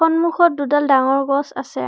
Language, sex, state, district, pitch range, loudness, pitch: Assamese, female, Assam, Kamrup Metropolitan, 275-325 Hz, -17 LUFS, 285 Hz